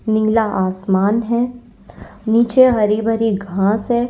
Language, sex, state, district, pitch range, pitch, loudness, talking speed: Hindi, female, Uttar Pradesh, Lalitpur, 205-235 Hz, 220 Hz, -16 LUFS, 115 wpm